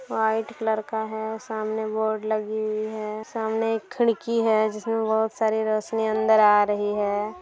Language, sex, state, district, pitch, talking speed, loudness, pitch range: Hindi, female, Bihar, Gopalganj, 220 Hz, 170 wpm, -24 LUFS, 215-220 Hz